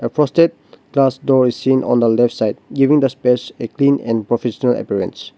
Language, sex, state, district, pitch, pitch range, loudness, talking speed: English, male, Nagaland, Dimapur, 130 Hz, 120-140 Hz, -16 LUFS, 180 wpm